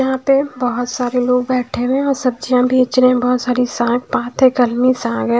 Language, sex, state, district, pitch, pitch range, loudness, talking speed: Hindi, female, Haryana, Charkhi Dadri, 250 Hz, 245-255 Hz, -16 LUFS, 190 wpm